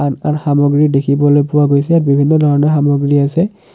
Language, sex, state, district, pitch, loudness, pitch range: Assamese, male, Assam, Kamrup Metropolitan, 145 Hz, -12 LUFS, 140-150 Hz